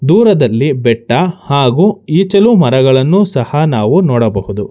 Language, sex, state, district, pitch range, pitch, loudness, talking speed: Kannada, male, Karnataka, Bangalore, 125-190 Hz, 145 Hz, -11 LUFS, 100 wpm